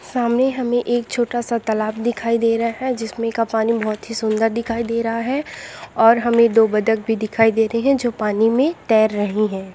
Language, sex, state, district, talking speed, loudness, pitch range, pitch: Hindi, female, Bihar, Saran, 215 wpm, -19 LUFS, 220-240 Hz, 230 Hz